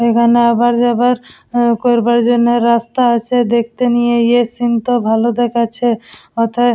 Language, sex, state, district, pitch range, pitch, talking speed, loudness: Bengali, female, West Bengal, Dakshin Dinajpur, 235-240 Hz, 240 Hz, 135 wpm, -14 LUFS